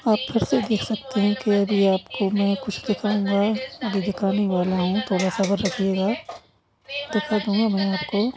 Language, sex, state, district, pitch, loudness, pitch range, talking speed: Hindi, male, Maharashtra, Sindhudurg, 205 Hz, -23 LUFS, 195-220 Hz, 145 wpm